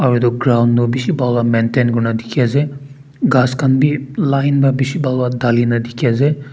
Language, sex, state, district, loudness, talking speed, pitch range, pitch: Nagamese, male, Nagaland, Dimapur, -15 LUFS, 200 wpm, 120-140 Hz, 125 Hz